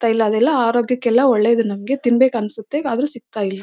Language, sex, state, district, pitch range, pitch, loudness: Kannada, female, Karnataka, Bellary, 220-250 Hz, 235 Hz, -17 LUFS